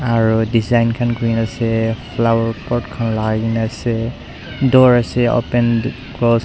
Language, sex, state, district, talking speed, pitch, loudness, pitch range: Nagamese, male, Nagaland, Dimapur, 165 wpm, 115 Hz, -17 LUFS, 115-120 Hz